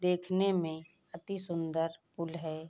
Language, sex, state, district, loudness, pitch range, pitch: Hindi, female, Bihar, Bhagalpur, -35 LUFS, 160-180 Hz, 170 Hz